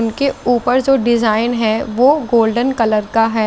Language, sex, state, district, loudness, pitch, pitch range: Hindi, female, Chandigarh, Chandigarh, -15 LUFS, 235 Hz, 225-250 Hz